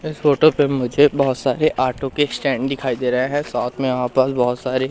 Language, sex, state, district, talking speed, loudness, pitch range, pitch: Hindi, male, Madhya Pradesh, Katni, 230 wpm, -19 LUFS, 125-145 Hz, 135 Hz